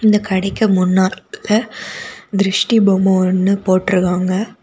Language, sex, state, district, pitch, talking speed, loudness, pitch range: Tamil, female, Tamil Nadu, Kanyakumari, 195 Hz, 90 wpm, -15 LUFS, 185-215 Hz